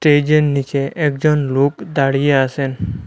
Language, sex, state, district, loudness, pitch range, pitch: Bengali, male, Assam, Hailakandi, -16 LUFS, 135-150 Hz, 140 Hz